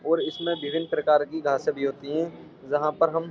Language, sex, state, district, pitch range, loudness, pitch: Hindi, male, Uttar Pradesh, Jyotiba Phule Nagar, 145-165 Hz, -26 LUFS, 155 Hz